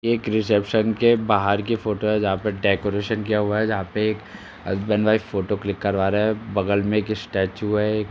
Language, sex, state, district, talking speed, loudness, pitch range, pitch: Hindi, male, Uttar Pradesh, Jalaun, 220 wpm, -22 LUFS, 100-110 Hz, 105 Hz